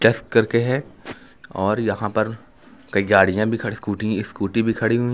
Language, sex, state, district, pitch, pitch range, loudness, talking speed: Hindi, male, Uttar Pradesh, Lucknow, 110 Hz, 100-115 Hz, -21 LUFS, 185 wpm